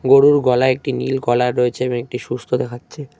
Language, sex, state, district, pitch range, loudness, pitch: Bengali, male, West Bengal, Cooch Behar, 125-135 Hz, -18 LUFS, 125 Hz